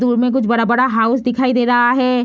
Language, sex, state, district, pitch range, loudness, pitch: Hindi, female, Bihar, Sitamarhi, 240-255 Hz, -15 LUFS, 245 Hz